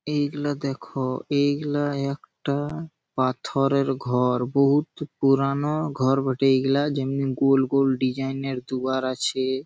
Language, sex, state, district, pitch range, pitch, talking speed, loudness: Bengali, male, West Bengal, Malda, 130-145 Hz, 135 Hz, 110 wpm, -24 LUFS